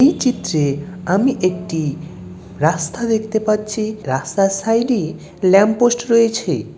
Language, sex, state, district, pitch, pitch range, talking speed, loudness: Bengali, male, West Bengal, Malda, 195 Hz, 160-225 Hz, 115 wpm, -17 LUFS